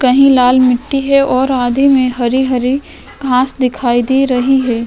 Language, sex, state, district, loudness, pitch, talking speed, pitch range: Hindi, female, Maharashtra, Aurangabad, -12 LUFS, 255 Hz, 185 wpm, 250-270 Hz